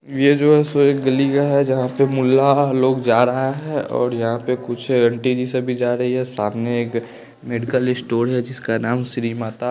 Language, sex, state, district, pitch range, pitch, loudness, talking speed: Hindi, male, Bihar, West Champaran, 120-135 Hz, 125 Hz, -19 LUFS, 215 wpm